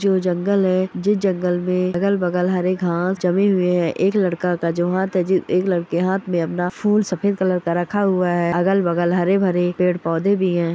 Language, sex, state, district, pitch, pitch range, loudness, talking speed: Hindi, female, Chhattisgarh, Rajnandgaon, 180 Hz, 175-190 Hz, -19 LUFS, 240 wpm